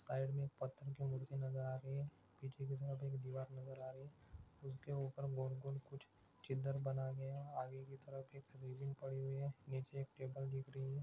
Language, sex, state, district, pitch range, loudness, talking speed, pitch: Hindi, male, Jharkhand, Jamtara, 130-140 Hz, -47 LUFS, 210 wpm, 135 Hz